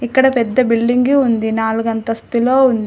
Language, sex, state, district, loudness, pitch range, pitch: Telugu, female, Telangana, Adilabad, -15 LUFS, 225-255 Hz, 235 Hz